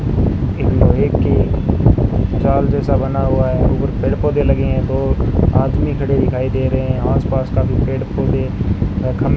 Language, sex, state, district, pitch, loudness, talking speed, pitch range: Hindi, male, Rajasthan, Bikaner, 130 Hz, -16 LUFS, 180 wpm, 125-130 Hz